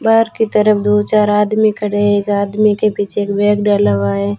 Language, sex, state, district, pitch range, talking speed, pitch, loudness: Hindi, female, Rajasthan, Bikaner, 205-215 Hz, 235 wpm, 210 Hz, -14 LUFS